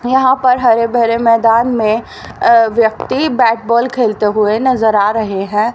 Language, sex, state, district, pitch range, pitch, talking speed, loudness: Hindi, female, Haryana, Rohtak, 220-245 Hz, 230 Hz, 165 wpm, -12 LUFS